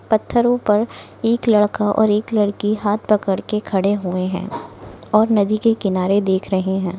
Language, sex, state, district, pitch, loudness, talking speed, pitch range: Hindi, female, Chhattisgarh, Kabirdham, 210 Hz, -18 LUFS, 170 wpm, 195-220 Hz